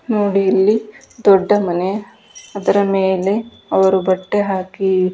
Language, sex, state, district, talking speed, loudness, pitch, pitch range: Kannada, female, Karnataka, Dharwad, 105 wpm, -16 LUFS, 195 Hz, 190-205 Hz